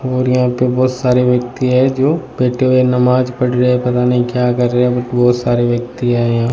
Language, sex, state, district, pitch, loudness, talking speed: Hindi, male, Rajasthan, Bikaner, 125 Hz, -14 LUFS, 240 wpm